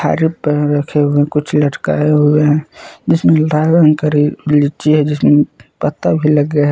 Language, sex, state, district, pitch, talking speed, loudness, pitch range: Hindi, male, Jharkhand, Palamu, 150 Hz, 180 wpm, -13 LUFS, 145-155 Hz